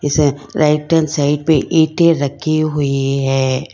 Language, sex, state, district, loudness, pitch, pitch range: Hindi, female, Karnataka, Bangalore, -15 LUFS, 150 Hz, 140-155 Hz